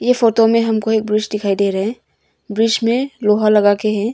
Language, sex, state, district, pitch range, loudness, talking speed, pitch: Hindi, female, Arunachal Pradesh, Longding, 210-230 Hz, -16 LUFS, 205 wpm, 215 Hz